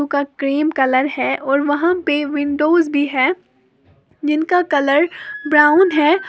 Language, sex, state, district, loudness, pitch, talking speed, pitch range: Hindi, female, Uttar Pradesh, Lalitpur, -16 LUFS, 295 Hz, 135 wpm, 285-335 Hz